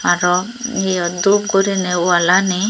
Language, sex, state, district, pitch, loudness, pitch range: Chakma, female, Tripura, Dhalai, 185 Hz, -16 LUFS, 180-200 Hz